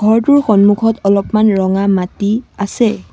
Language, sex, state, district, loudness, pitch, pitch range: Assamese, female, Assam, Sonitpur, -13 LUFS, 205 Hz, 200-225 Hz